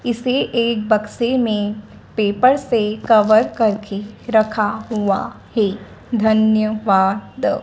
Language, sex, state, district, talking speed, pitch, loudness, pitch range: Hindi, female, Madhya Pradesh, Dhar, 95 wpm, 220 Hz, -18 LUFS, 210-235 Hz